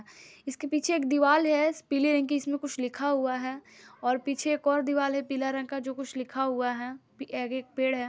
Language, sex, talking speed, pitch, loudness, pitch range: Bhojpuri, female, 230 wpm, 275 Hz, -28 LUFS, 260-290 Hz